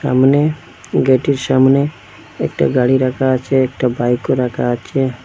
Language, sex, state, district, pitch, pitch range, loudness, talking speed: Bengali, male, Assam, Hailakandi, 130 Hz, 125-135 Hz, -15 LUFS, 125 wpm